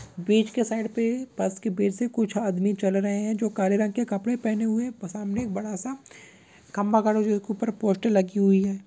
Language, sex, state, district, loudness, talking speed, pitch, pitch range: Hindi, female, Bihar, Samastipur, -25 LUFS, 225 wpm, 215 Hz, 200-225 Hz